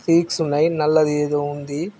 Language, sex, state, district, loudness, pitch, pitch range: Telugu, male, Telangana, Nalgonda, -20 LUFS, 155 Hz, 145-165 Hz